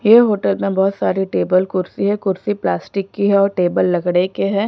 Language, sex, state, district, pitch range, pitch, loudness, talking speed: Hindi, female, Punjab, Pathankot, 185-200 Hz, 195 Hz, -17 LUFS, 220 wpm